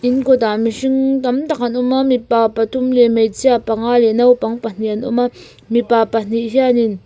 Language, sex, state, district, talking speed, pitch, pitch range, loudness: Mizo, female, Mizoram, Aizawl, 185 wpm, 240 Hz, 225-255 Hz, -15 LUFS